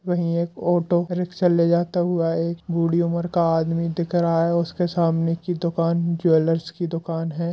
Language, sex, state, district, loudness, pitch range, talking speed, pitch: Hindi, male, Bihar, Madhepura, -22 LUFS, 165-175 Hz, 190 wpm, 170 Hz